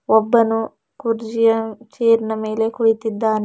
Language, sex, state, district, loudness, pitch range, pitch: Kannada, female, Karnataka, Bidar, -18 LUFS, 220-230 Hz, 225 Hz